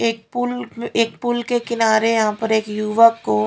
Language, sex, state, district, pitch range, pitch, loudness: Hindi, female, Haryana, Rohtak, 220-240 Hz, 230 Hz, -19 LUFS